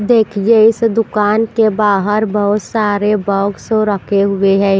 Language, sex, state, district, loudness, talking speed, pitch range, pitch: Hindi, female, Punjab, Pathankot, -13 LUFS, 135 wpm, 200-220 Hz, 210 Hz